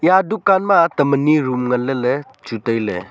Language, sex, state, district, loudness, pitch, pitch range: Wancho, male, Arunachal Pradesh, Longding, -17 LUFS, 140 Hz, 125-170 Hz